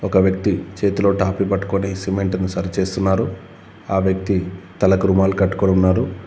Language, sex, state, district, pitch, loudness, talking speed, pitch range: Telugu, male, Telangana, Komaram Bheem, 95 Hz, -19 LUFS, 125 wpm, 95-100 Hz